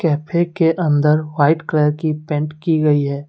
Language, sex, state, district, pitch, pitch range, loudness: Hindi, male, Jharkhand, Deoghar, 155 Hz, 150-165 Hz, -17 LUFS